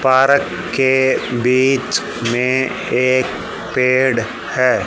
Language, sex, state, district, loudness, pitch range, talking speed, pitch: Hindi, male, Haryana, Charkhi Dadri, -16 LUFS, 125-130 Hz, 85 wpm, 130 Hz